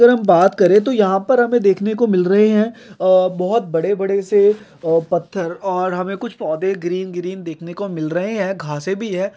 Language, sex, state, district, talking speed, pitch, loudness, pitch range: Hindi, male, Bihar, Gaya, 215 wpm, 190 Hz, -17 LUFS, 180-210 Hz